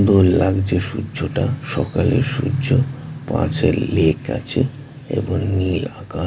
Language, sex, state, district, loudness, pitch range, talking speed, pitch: Bengali, male, West Bengal, North 24 Parganas, -19 LUFS, 95-135 Hz, 115 wpm, 125 Hz